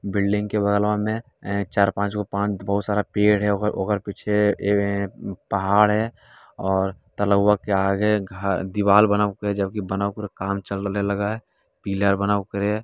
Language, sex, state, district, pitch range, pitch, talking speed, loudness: Hindi, male, Bihar, Jamui, 100-105 Hz, 100 Hz, 170 wpm, -22 LUFS